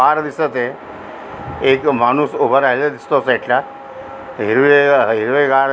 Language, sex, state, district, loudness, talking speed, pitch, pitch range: Marathi, female, Maharashtra, Aurangabad, -15 LUFS, 135 wpm, 140 Hz, 135-145 Hz